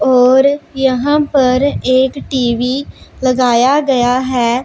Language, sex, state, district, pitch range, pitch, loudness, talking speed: Hindi, female, Punjab, Pathankot, 250-275 Hz, 260 Hz, -13 LUFS, 105 wpm